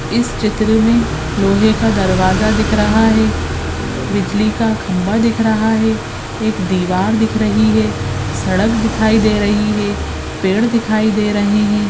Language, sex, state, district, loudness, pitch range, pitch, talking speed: Hindi, female, Maharashtra, Chandrapur, -15 LUFS, 180-220 Hz, 210 Hz, 150 wpm